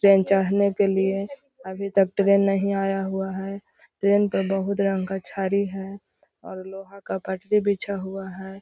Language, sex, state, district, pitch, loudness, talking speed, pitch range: Magahi, female, Bihar, Gaya, 195 Hz, -24 LUFS, 175 wpm, 190-200 Hz